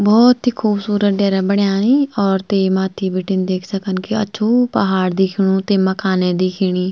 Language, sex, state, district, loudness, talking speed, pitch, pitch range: Garhwali, female, Uttarakhand, Tehri Garhwal, -16 LUFS, 165 wpm, 195 Hz, 190-210 Hz